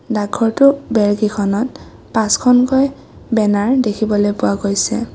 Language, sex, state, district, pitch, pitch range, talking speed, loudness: Assamese, female, Assam, Kamrup Metropolitan, 220 Hz, 205-250 Hz, 95 wpm, -15 LUFS